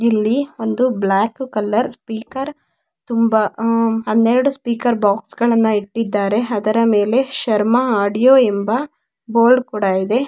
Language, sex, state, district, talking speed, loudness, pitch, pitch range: Kannada, female, Karnataka, Mysore, 115 wpm, -17 LUFS, 230 Hz, 215-250 Hz